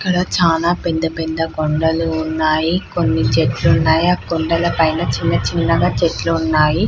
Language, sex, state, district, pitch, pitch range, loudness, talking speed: Telugu, female, Andhra Pradesh, Chittoor, 160 Hz, 155-170 Hz, -16 LUFS, 140 wpm